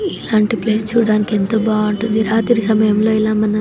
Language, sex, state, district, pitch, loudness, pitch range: Telugu, female, Telangana, Nalgonda, 215 Hz, -15 LUFS, 215-220 Hz